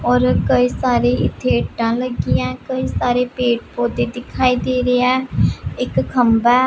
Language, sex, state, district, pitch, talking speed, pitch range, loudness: Punjabi, female, Punjab, Pathankot, 245 Hz, 155 wpm, 230-250 Hz, -18 LUFS